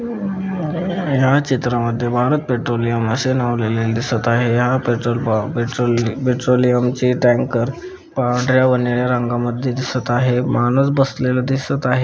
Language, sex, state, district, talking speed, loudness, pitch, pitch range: Marathi, male, Maharashtra, Chandrapur, 140 wpm, -18 LUFS, 125 Hz, 120-135 Hz